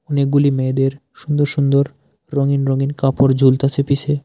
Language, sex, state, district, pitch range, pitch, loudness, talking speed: Bengali, male, Tripura, Unakoti, 135-140 Hz, 140 Hz, -17 LUFS, 125 wpm